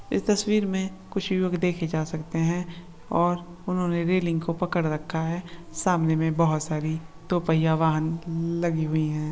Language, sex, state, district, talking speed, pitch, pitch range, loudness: Hindi, male, Andhra Pradesh, Krishna, 175 wpm, 170 Hz, 160-180 Hz, -26 LUFS